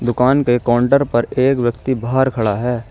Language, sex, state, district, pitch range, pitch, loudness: Hindi, male, Uttar Pradesh, Shamli, 120-130 Hz, 125 Hz, -16 LUFS